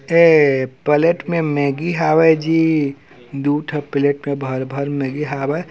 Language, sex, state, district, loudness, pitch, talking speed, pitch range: Chhattisgarhi, male, Chhattisgarh, Raigarh, -17 LUFS, 145 Hz, 145 wpm, 140-160 Hz